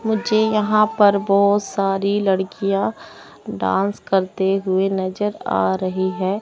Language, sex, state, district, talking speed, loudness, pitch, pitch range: Hindi, male, Chandigarh, Chandigarh, 120 wpm, -19 LUFS, 195 Hz, 190-205 Hz